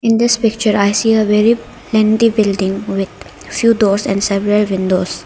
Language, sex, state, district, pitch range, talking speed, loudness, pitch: English, female, Arunachal Pradesh, Lower Dibang Valley, 200-225 Hz, 170 wpm, -14 LUFS, 210 Hz